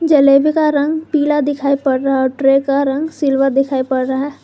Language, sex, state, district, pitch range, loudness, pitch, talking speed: Hindi, female, Jharkhand, Garhwa, 270-295 Hz, -15 LUFS, 275 Hz, 215 wpm